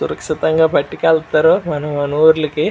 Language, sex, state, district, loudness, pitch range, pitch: Telugu, male, Andhra Pradesh, Srikakulam, -15 LUFS, 150-160 Hz, 155 Hz